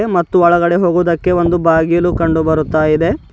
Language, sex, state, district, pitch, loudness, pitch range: Kannada, male, Karnataka, Bidar, 170 Hz, -13 LUFS, 160-175 Hz